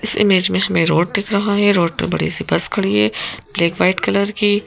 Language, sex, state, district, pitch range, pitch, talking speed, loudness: Hindi, female, Madhya Pradesh, Bhopal, 170-205 Hz, 195 Hz, 260 wpm, -17 LUFS